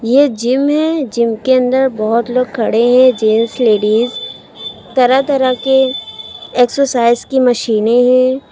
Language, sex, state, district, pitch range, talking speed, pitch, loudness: Hindi, female, Uttar Pradesh, Lucknow, 235-265 Hz, 135 wpm, 250 Hz, -13 LUFS